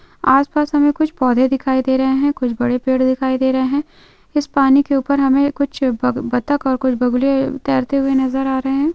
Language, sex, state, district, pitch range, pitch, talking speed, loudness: Hindi, female, Andhra Pradesh, Guntur, 260-280 Hz, 270 Hz, 210 wpm, -17 LUFS